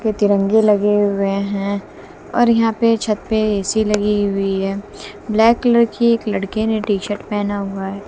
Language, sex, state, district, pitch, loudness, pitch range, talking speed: Hindi, female, Haryana, Jhajjar, 210 Hz, -17 LUFS, 200-220 Hz, 180 wpm